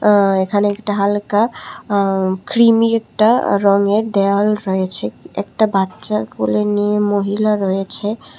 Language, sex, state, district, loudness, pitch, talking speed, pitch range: Bengali, female, Tripura, West Tripura, -16 LUFS, 205 Hz, 105 wpm, 195-215 Hz